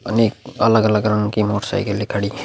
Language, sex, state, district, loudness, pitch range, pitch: Hindi, male, Bihar, Vaishali, -18 LUFS, 105-115 Hz, 105 Hz